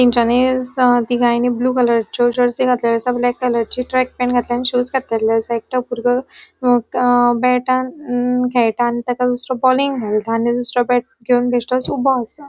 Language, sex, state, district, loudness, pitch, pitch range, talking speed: Konkani, female, Goa, North and South Goa, -17 LUFS, 245 Hz, 240-255 Hz, 155 wpm